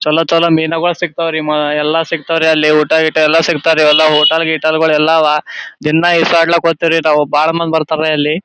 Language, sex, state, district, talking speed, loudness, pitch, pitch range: Kannada, male, Karnataka, Gulbarga, 190 wpm, -11 LUFS, 160 Hz, 155-165 Hz